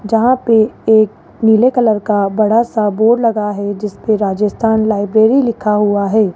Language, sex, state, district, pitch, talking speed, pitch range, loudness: Hindi, male, Rajasthan, Jaipur, 215 Hz, 160 wpm, 210-225 Hz, -13 LUFS